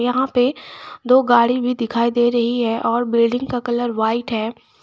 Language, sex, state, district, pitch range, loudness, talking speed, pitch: Hindi, female, Jharkhand, Garhwa, 235-250 Hz, -18 LUFS, 185 wpm, 240 Hz